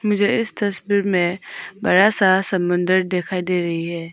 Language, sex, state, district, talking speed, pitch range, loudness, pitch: Hindi, female, Arunachal Pradesh, Papum Pare, 160 wpm, 180-200 Hz, -19 LUFS, 185 Hz